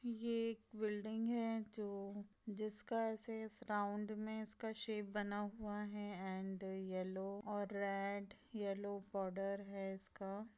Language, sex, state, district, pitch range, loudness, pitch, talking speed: Hindi, female, Bihar, Lakhisarai, 200-220 Hz, -44 LUFS, 210 Hz, 120 wpm